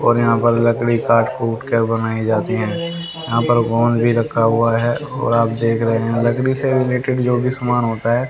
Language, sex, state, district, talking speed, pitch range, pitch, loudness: Hindi, male, Haryana, Rohtak, 215 wpm, 115-125 Hz, 115 Hz, -17 LUFS